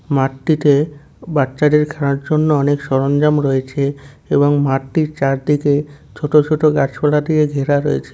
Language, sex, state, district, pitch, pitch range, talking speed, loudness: Bengali, male, West Bengal, North 24 Parganas, 145 Hz, 140-150 Hz, 120 wpm, -16 LUFS